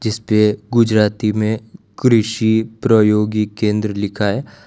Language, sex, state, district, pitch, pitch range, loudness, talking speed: Hindi, male, Gujarat, Valsad, 110 Hz, 105-110 Hz, -16 LUFS, 105 wpm